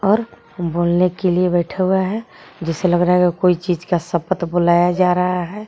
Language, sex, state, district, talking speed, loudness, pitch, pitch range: Hindi, female, Jharkhand, Garhwa, 200 wpm, -18 LUFS, 180 Hz, 175-185 Hz